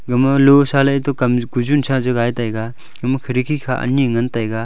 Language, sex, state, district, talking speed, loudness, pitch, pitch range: Wancho, male, Arunachal Pradesh, Longding, 180 wpm, -17 LUFS, 125 Hz, 120-140 Hz